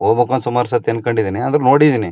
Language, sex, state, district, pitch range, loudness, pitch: Kannada, male, Karnataka, Mysore, 115-130 Hz, -15 LUFS, 120 Hz